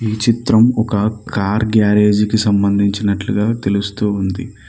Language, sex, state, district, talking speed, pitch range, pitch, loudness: Telugu, male, Telangana, Mahabubabad, 105 wpm, 100-110 Hz, 105 Hz, -15 LUFS